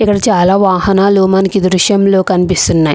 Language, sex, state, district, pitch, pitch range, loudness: Telugu, female, Andhra Pradesh, Chittoor, 190 Hz, 185-200 Hz, -10 LUFS